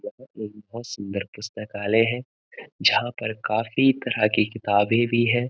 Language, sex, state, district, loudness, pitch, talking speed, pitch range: Hindi, male, Uttarakhand, Uttarkashi, -23 LUFS, 115 Hz, 155 wpm, 105-120 Hz